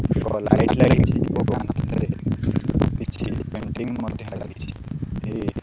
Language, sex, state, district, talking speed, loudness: Odia, male, Odisha, Khordha, 115 wpm, -23 LUFS